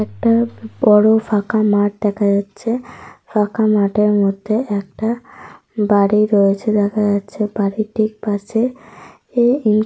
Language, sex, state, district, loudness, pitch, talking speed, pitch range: Bengali, female, Jharkhand, Sahebganj, -17 LUFS, 215 Hz, 105 wpm, 205-225 Hz